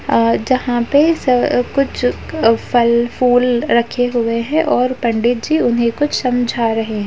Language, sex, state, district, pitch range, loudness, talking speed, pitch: Hindi, female, Uttar Pradesh, Jalaun, 235-255 Hz, -15 LUFS, 160 wpm, 245 Hz